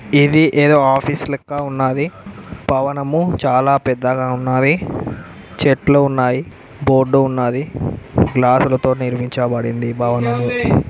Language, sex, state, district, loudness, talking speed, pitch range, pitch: Telugu, male, Telangana, Karimnagar, -16 LUFS, 100 wpm, 125-140 Hz, 130 Hz